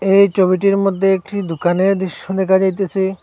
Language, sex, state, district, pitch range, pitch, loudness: Bengali, male, Assam, Hailakandi, 190-195 Hz, 190 Hz, -16 LUFS